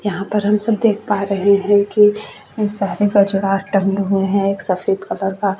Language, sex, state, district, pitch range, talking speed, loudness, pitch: Hindi, female, Chhattisgarh, Bastar, 195-210 Hz, 205 wpm, -17 LUFS, 200 Hz